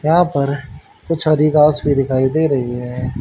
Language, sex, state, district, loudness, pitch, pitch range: Hindi, male, Haryana, Rohtak, -16 LUFS, 140 Hz, 130-155 Hz